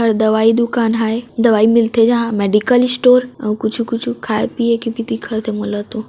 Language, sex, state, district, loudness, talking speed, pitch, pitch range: Chhattisgarhi, female, Chhattisgarh, Raigarh, -15 LUFS, 185 wpm, 230 Hz, 220-235 Hz